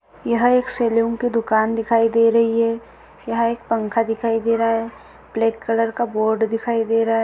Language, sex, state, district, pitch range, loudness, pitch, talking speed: Hindi, female, Maharashtra, Sindhudurg, 225-230 Hz, -19 LUFS, 230 Hz, 190 wpm